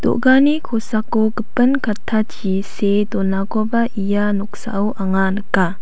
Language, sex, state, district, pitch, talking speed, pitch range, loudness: Garo, female, Meghalaya, South Garo Hills, 210 Hz, 105 wpm, 200-225 Hz, -18 LUFS